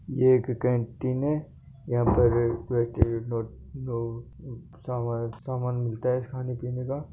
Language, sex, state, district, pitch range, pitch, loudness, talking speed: Marwari, male, Rajasthan, Nagaur, 115-130 Hz, 125 Hz, -27 LUFS, 110 wpm